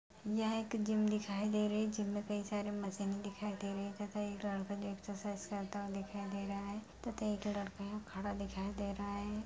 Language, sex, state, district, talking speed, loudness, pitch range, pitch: Hindi, female, Bihar, Purnia, 215 wpm, -40 LUFS, 200-210 Hz, 205 Hz